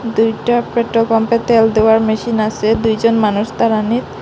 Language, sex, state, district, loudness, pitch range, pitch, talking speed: Bengali, female, Assam, Hailakandi, -14 LUFS, 220-230 Hz, 225 Hz, 155 wpm